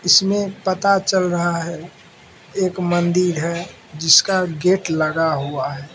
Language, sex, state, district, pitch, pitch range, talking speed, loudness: Hindi, male, Mizoram, Aizawl, 175 Hz, 165-190 Hz, 130 wpm, -18 LUFS